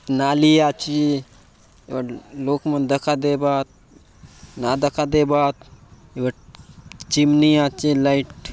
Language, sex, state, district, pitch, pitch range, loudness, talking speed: Halbi, male, Chhattisgarh, Bastar, 140 Hz, 130-150 Hz, -20 LUFS, 105 wpm